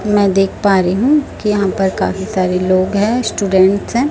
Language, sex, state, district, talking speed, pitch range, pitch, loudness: Hindi, female, Chhattisgarh, Raipur, 205 wpm, 190-210 Hz, 200 Hz, -14 LUFS